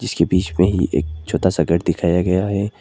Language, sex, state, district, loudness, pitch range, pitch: Hindi, male, Arunachal Pradesh, Lower Dibang Valley, -18 LUFS, 85-95 Hz, 90 Hz